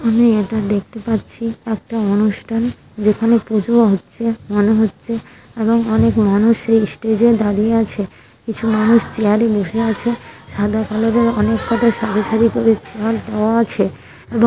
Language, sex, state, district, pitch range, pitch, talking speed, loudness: Bengali, female, West Bengal, Dakshin Dinajpur, 215-230 Hz, 225 Hz, 155 wpm, -16 LUFS